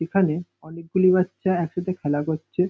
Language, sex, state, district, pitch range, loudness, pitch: Bengali, male, West Bengal, North 24 Parganas, 160-185 Hz, -23 LUFS, 180 Hz